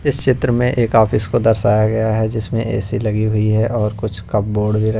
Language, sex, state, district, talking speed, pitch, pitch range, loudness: Hindi, male, Punjab, Pathankot, 215 wpm, 110 Hz, 105-115 Hz, -17 LUFS